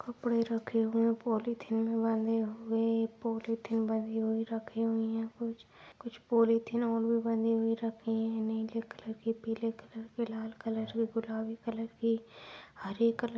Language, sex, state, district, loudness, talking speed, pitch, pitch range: Hindi, female, Bihar, Madhepura, -33 LUFS, 155 wpm, 225 Hz, 225-230 Hz